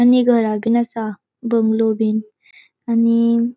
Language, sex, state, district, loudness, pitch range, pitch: Konkani, female, Goa, North and South Goa, -17 LUFS, 220-235 Hz, 230 Hz